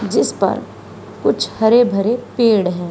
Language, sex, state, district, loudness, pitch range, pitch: Hindi, female, Haryana, Charkhi Dadri, -16 LUFS, 195-235 Hz, 220 Hz